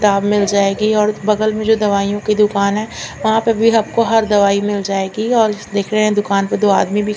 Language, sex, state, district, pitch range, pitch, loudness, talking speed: Hindi, female, Chandigarh, Chandigarh, 200-215 Hz, 210 Hz, -15 LUFS, 235 wpm